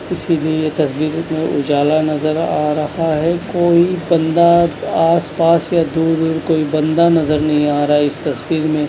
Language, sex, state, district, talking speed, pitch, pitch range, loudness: Hindi, male, Punjab, Kapurthala, 155 wpm, 160 Hz, 150-165 Hz, -15 LUFS